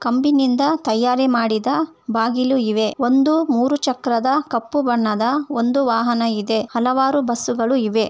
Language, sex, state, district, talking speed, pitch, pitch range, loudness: Kannada, female, Karnataka, Bellary, 110 wpm, 245 Hz, 230-270 Hz, -18 LUFS